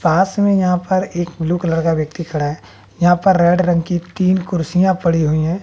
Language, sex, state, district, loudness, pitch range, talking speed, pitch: Hindi, male, Bihar, West Champaran, -16 LUFS, 165-185 Hz, 225 wpm, 175 Hz